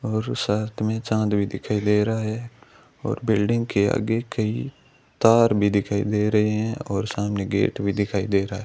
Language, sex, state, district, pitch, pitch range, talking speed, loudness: Hindi, male, Rajasthan, Bikaner, 105 Hz, 100-115 Hz, 195 wpm, -23 LUFS